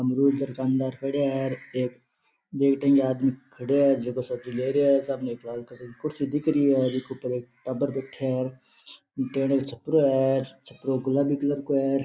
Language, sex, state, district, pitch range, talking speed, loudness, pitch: Rajasthani, male, Rajasthan, Nagaur, 130-140 Hz, 185 wpm, -26 LUFS, 135 Hz